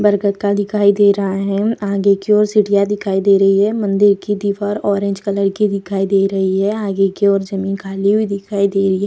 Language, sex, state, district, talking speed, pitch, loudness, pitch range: Hindi, female, Bihar, Vaishali, 225 wpm, 200 Hz, -16 LUFS, 195-205 Hz